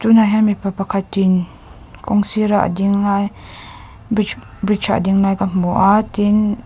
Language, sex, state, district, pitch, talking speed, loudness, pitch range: Mizo, female, Mizoram, Aizawl, 200 Hz, 180 wpm, -16 LUFS, 195-210 Hz